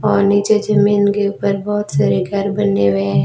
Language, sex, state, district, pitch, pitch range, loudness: Hindi, female, Rajasthan, Bikaner, 200 Hz, 200-205 Hz, -15 LUFS